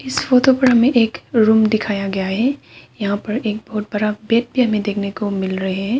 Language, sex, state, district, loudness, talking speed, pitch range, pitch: Hindi, female, Arunachal Pradesh, Papum Pare, -17 LUFS, 220 wpm, 200-240 Hz, 215 Hz